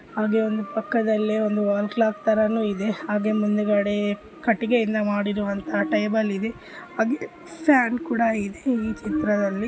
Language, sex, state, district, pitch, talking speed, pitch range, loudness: Kannada, female, Karnataka, Bellary, 215 Hz, 120 wpm, 205-225 Hz, -23 LUFS